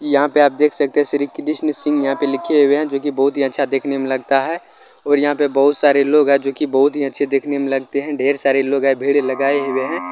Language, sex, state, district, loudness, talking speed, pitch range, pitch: Hindi, male, Bihar, Jamui, -17 LUFS, 275 wpm, 135-145 Hz, 140 Hz